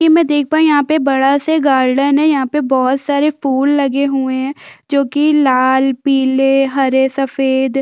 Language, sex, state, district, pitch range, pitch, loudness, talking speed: Hindi, female, Chhattisgarh, Jashpur, 265-290 Hz, 275 Hz, -13 LUFS, 185 wpm